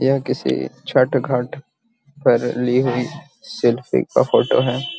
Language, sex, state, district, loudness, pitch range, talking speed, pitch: Magahi, male, Bihar, Gaya, -19 LUFS, 120-140 Hz, 145 wpm, 125 Hz